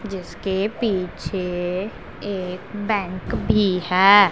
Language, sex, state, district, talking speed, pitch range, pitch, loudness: Hindi, female, Punjab, Pathankot, 85 wpm, 180-205 Hz, 190 Hz, -22 LUFS